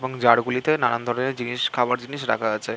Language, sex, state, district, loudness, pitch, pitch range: Bengali, male, West Bengal, Malda, -22 LUFS, 125 Hz, 120-130 Hz